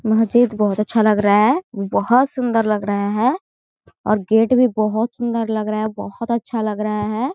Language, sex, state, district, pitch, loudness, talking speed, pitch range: Hindi, female, Chhattisgarh, Korba, 220 Hz, -18 LUFS, 205 wpm, 210-240 Hz